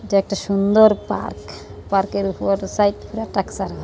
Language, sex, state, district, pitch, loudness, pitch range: Bengali, female, Tripura, Unakoti, 200 Hz, -19 LUFS, 195-210 Hz